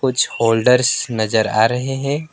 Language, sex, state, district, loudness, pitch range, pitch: Hindi, male, West Bengal, Alipurduar, -17 LUFS, 115-135 Hz, 125 Hz